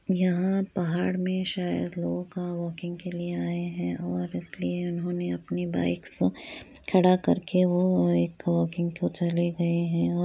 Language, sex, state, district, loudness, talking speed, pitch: Hindi, female, Uttar Pradesh, Etah, -27 LUFS, 160 wpm, 170 Hz